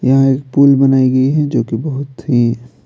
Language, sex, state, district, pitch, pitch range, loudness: Hindi, male, Bihar, Patna, 135 Hz, 125-140 Hz, -13 LUFS